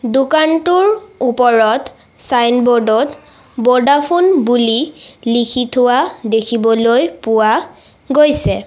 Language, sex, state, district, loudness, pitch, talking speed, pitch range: Assamese, female, Assam, Sonitpur, -13 LUFS, 250 Hz, 75 wpm, 230-295 Hz